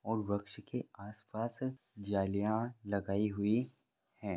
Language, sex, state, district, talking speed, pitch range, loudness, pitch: Hindi, male, Bihar, Vaishali, 110 wpm, 100-115 Hz, -37 LUFS, 105 Hz